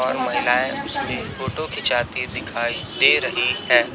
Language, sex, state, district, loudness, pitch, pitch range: Hindi, male, Chhattisgarh, Raipur, -20 LUFS, 120 Hz, 110-125 Hz